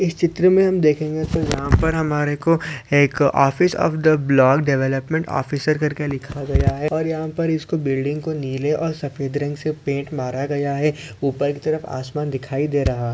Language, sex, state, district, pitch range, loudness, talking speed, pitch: Hindi, male, Maharashtra, Sindhudurg, 140-155 Hz, -20 LUFS, 200 wpm, 145 Hz